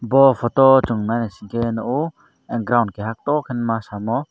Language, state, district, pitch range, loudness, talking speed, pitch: Kokborok, Tripura, Dhalai, 115-135 Hz, -19 LUFS, 165 wpm, 120 Hz